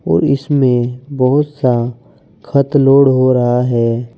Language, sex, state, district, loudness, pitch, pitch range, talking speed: Hindi, male, Uttar Pradesh, Saharanpur, -13 LUFS, 130 Hz, 120-140 Hz, 130 wpm